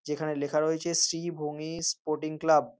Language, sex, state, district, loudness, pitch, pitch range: Bengali, male, West Bengal, North 24 Parganas, -29 LUFS, 155 Hz, 150-165 Hz